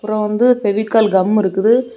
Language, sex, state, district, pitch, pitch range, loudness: Tamil, female, Tamil Nadu, Kanyakumari, 215 Hz, 205-230 Hz, -14 LUFS